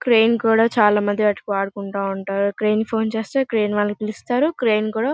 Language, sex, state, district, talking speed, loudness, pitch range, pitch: Telugu, female, Andhra Pradesh, Guntur, 200 wpm, -20 LUFS, 205-225 Hz, 215 Hz